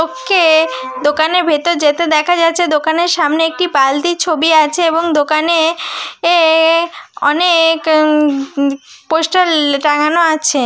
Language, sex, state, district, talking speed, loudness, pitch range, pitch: Bengali, female, West Bengal, Dakshin Dinajpur, 105 wpm, -12 LUFS, 300-340 Hz, 320 Hz